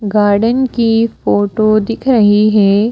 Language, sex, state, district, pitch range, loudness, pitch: Hindi, female, Madhya Pradesh, Bhopal, 205-230 Hz, -12 LUFS, 215 Hz